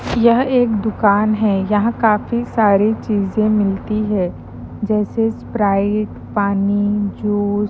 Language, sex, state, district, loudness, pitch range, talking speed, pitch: Hindi, female, Maharashtra, Chandrapur, -17 LUFS, 205-220 Hz, 115 wpm, 210 Hz